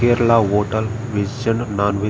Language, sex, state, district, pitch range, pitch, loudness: Telugu, male, Andhra Pradesh, Srikakulam, 105-115 Hz, 110 Hz, -19 LUFS